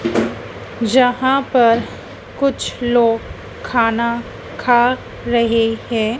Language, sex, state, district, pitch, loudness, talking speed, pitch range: Hindi, female, Madhya Pradesh, Dhar, 235 Hz, -17 LUFS, 75 wpm, 225-245 Hz